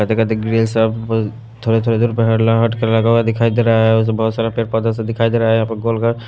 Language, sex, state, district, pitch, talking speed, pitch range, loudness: Hindi, male, Haryana, Rohtak, 115 Hz, 305 wpm, 110-115 Hz, -16 LUFS